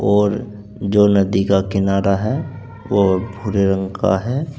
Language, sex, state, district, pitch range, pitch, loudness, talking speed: Hindi, male, Uttar Pradesh, Saharanpur, 95-110 Hz, 100 Hz, -18 LUFS, 145 wpm